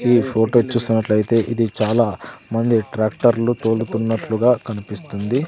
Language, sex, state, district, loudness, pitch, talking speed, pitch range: Telugu, male, Andhra Pradesh, Sri Satya Sai, -19 LUFS, 115 Hz, 100 wpm, 110-120 Hz